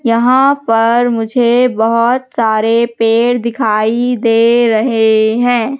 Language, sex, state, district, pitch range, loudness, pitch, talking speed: Hindi, female, Madhya Pradesh, Katni, 225-245 Hz, -12 LUFS, 235 Hz, 105 wpm